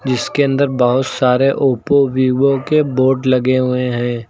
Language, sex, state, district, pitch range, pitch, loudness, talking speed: Hindi, male, Uttar Pradesh, Lucknow, 125-135 Hz, 130 Hz, -15 LUFS, 155 wpm